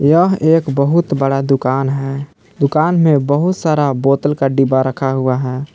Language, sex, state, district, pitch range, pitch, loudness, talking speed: Hindi, male, Jharkhand, Palamu, 135-155 Hz, 140 Hz, -15 LUFS, 165 wpm